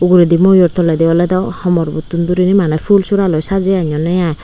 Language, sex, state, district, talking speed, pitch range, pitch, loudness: Chakma, female, Tripura, Unakoti, 190 wpm, 165-190 Hz, 180 Hz, -12 LUFS